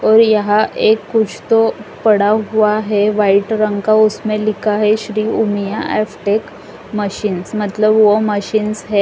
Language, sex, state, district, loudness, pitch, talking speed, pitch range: Hindi, female, Uttar Pradesh, Lalitpur, -15 LUFS, 215 Hz, 155 wpm, 210-215 Hz